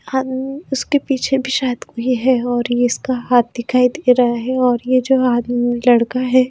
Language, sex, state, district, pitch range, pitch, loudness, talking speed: Hindi, female, Himachal Pradesh, Shimla, 245-260 Hz, 255 Hz, -17 LUFS, 185 wpm